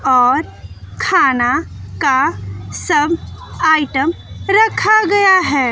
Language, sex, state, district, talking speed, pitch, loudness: Hindi, female, Bihar, West Champaran, 85 wpm, 270 Hz, -14 LUFS